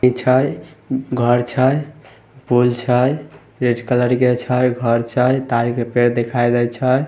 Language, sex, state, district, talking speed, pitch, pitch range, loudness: Maithili, male, Bihar, Samastipur, 145 wpm, 125 Hz, 120-130 Hz, -17 LUFS